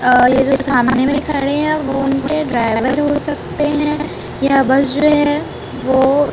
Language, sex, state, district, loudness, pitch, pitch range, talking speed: Hindi, female, Chhattisgarh, Raipur, -15 LUFS, 275 Hz, 265-295 Hz, 180 wpm